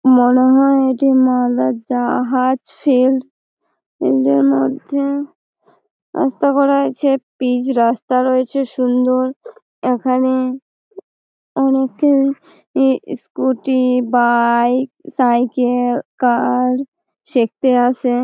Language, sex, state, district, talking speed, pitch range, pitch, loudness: Bengali, female, West Bengal, Malda, 80 wpm, 245-275 Hz, 255 Hz, -16 LUFS